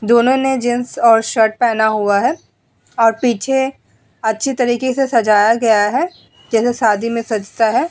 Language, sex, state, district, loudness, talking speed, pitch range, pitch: Hindi, female, Uttar Pradesh, Hamirpur, -15 LUFS, 160 wpm, 220-255 Hz, 230 Hz